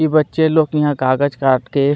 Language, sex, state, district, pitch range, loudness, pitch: Hindi, male, Chhattisgarh, Kabirdham, 135-155 Hz, -16 LUFS, 145 Hz